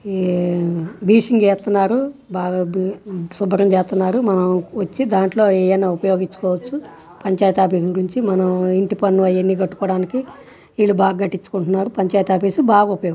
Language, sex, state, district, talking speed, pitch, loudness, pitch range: Telugu, female, Andhra Pradesh, Guntur, 115 wpm, 190 Hz, -17 LUFS, 185-200 Hz